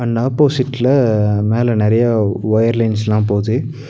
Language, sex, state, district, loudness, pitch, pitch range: Tamil, male, Tamil Nadu, Nilgiris, -15 LUFS, 115 Hz, 105-125 Hz